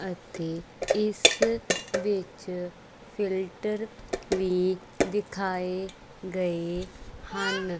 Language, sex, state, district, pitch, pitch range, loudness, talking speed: Punjabi, female, Punjab, Kapurthala, 185 Hz, 175-195 Hz, -29 LUFS, 60 wpm